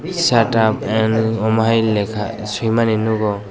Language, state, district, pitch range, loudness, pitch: Kokborok, Tripura, West Tripura, 110-115 Hz, -17 LUFS, 110 Hz